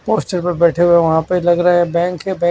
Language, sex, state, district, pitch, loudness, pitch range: Hindi, male, Haryana, Charkhi Dadri, 175 Hz, -14 LUFS, 170-180 Hz